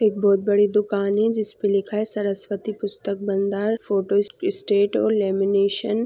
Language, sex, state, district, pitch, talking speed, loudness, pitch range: Hindi, female, Bihar, Madhepura, 205 Hz, 180 wpm, -22 LUFS, 200-215 Hz